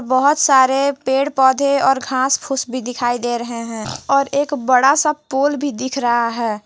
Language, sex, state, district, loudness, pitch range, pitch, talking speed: Hindi, female, Jharkhand, Garhwa, -17 LUFS, 245-280 Hz, 265 Hz, 190 wpm